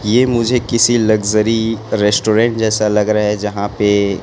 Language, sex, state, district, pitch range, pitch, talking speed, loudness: Hindi, male, Chhattisgarh, Raipur, 105-115 Hz, 110 Hz, 155 wpm, -14 LUFS